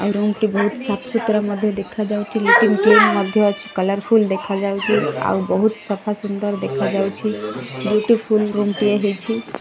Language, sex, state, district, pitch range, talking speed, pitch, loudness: Odia, female, Odisha, Malkangiri, 200-215 Hz, 150 wpm, 205 Hz, -18 LUFS